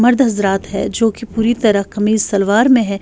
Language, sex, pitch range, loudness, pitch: Urdu, female, 200-235 Hz, -15 LUFS, 220 Hz